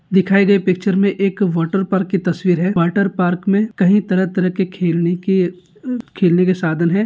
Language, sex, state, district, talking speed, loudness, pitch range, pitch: Hindi, male, Rajasthan, Nagaur, 185 wpm, -16 LUFS, 180-195 Hz, 190 Hz